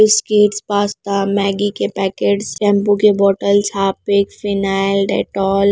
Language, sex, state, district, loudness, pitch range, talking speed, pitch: Hindi, female, Punjab, Pathankot, -16 LUFS, 195-205 Hz, 125 wpm, 200 Hz